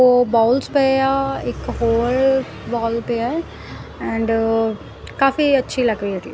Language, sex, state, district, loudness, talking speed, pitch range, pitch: Punjabi, female, Punjab, Kapurthala, -19 LUFS, 150 wpm, 225-270 Hz, 245 Hz